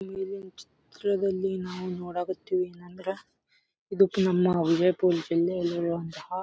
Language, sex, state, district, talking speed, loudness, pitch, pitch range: Kannada, male, Karnataka, Bijapur, 105 wpm, -28 LUFS, 180 Hz, 175-190 Hz